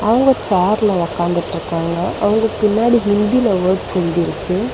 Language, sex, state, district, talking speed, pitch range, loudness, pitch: Tamil, female, Tamil Nadu, Chennai, 100 wpm, 175-220 Hz, -16 LUFS, 205 Hz